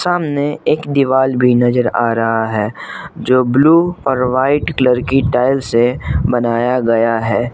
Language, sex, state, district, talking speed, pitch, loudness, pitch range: Hindi, male, Jharkhand, Garhwa, 150 wpm, 125 Hz, -14 LUFS, 120-135 Hz